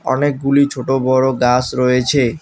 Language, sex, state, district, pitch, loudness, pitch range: Bengali, male, West Bengal, Alipurduar, 130 Hz, -15 LUFS, 125-140 Hz